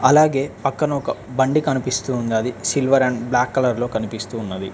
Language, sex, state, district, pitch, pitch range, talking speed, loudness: Telugu, male, Telangana, Mahabubabad, 130 Hz, 115-135 Hz, 140 wpm, -20 LUFS